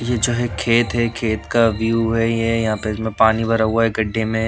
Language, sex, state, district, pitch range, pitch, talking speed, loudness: Hindi, male, Bihar, Katihar, 110-115 Hz, 115 Hz, 240 wpm, -18 LUFS